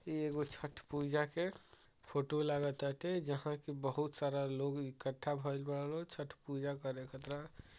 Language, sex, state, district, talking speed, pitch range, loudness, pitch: Bhojpuri, male, Uttar Pradesh, Gorakhpur, 155 wpm, 140-150 Hz, -41 LUFS, 145 Hz